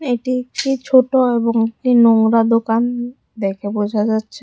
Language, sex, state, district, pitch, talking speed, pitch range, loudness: Bengali, female, Tripura, West Tripura, 235 Hz, 120 wpm, 225-250 Hz, -16 LUFS